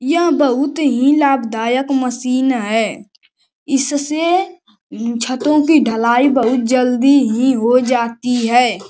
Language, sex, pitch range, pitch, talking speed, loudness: Hindi, male, 240-285 Hz, 255 Hz, 110 wpm, -15 LUFS